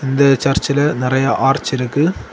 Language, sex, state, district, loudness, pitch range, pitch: Tamil, male, Tamil Nadu, Kanyakumari, -15 LUFS, 135-140 Hz, 135 Hz